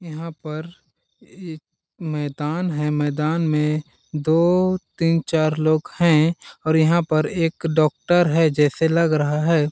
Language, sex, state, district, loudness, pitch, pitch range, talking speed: Hindi, male, Chhattisgarh, Balrampur, -20 LUFS, 160 Hz, 155-165 Hz, 135 wpm